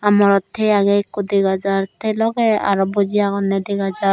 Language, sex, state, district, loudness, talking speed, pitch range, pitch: Chakma, female, Tripura, Dhalai, -17 LUFS, 205 wpm, 195-205 Hz, 200 Hz